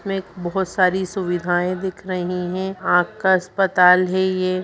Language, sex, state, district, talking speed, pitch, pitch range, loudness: Hindi, female, Bihar, Jahanabad, 170 wpm, 185 Hz, 180-190 Hz, -20 LUFS